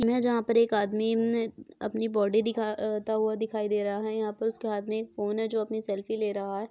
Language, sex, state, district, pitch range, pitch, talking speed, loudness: Hindi, female, Jharkhand, Sahebganj, 210-225 Hz, 220 Hz, 230 wpm, -29 LUFS